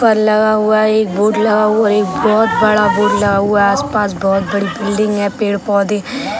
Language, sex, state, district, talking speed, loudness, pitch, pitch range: Hindi, female, Bihar, Sitamarhi, 215 wpm, -13 LUFS, 210 Hz, 200-215 Hz